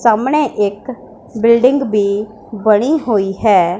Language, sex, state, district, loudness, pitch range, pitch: Hindi, female, Punjab, Pathankot, -14 LUFS, 205-255 Hz, 220 Hz